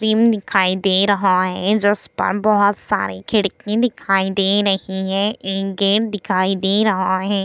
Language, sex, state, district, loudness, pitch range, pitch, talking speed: Hindi, female, Bihar, Vaishali, -18 LUFS, 190-210 Hz, 195 Hz, 155 wpm